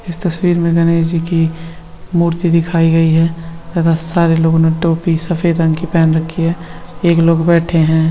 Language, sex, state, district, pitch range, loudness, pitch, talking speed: Hindi, male, Andhra Pradesh, Visakhapatnam, 165-170 Hz, -13 LUFS, 165 Hz, 110 wpm